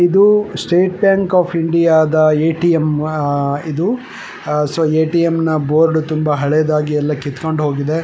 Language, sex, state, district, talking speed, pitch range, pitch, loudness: Kannada, male, Karnataka, Chamarajanagar, 95 wpm, 150-170 Hz, 160 Hz, -15 LUFS